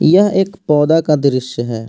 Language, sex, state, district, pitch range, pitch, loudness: Hindi, male, Jharkhand, Ranchi, 130-185 Hz, 150 Hz, -14 LUFS